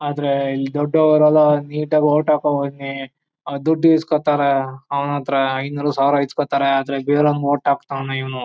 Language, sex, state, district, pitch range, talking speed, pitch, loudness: Kannada, male, Karnataka, Chamarajanagar, 135-150 Hz, 130 wpm, 145 Hz, -18 LUFS